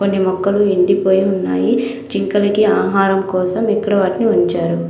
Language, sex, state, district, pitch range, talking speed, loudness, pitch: Telugu, female, Andhra Pradesh, Krishna, 185-200 Hz, 135 wpm, -15 LUFS, 195 Hz